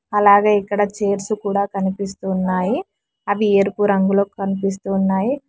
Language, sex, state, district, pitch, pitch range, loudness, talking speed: Telugu, male, Telangana, Hyderabad, 200 Hz, 195-205 Hz, -18 LUFS, 100 wpm